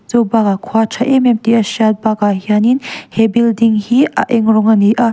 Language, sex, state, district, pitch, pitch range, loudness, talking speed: Mizo, female, Mizoram, Aizawl, 225 Hz, 215-235 Hz, -13 LUFS, 235 wpm